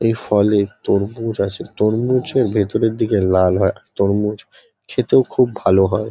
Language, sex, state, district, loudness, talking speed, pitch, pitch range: Bengali, male, West Bengal, Kolkata, -17 LUFS, 135 wpm, 105 Hz, 100-115 Hz